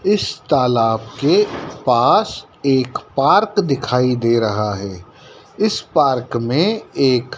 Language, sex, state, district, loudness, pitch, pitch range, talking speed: Hindi, male, Madhya Pradesh, Dhar, -17 LUFS, 125 Hz, 115-160 Hz, 115 wpm